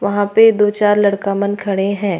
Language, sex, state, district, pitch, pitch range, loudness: Surgujia, female, Chhattisgarh, Sarguja, 205 Hz, 200-210 Hz, -15 LUFS